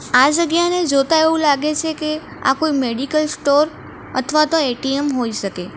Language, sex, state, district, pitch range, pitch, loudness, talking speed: Gujarati, female, Gujarat, Valsad, 270-315 Hz, 295 Hz, -17 LUFS, 165 wpm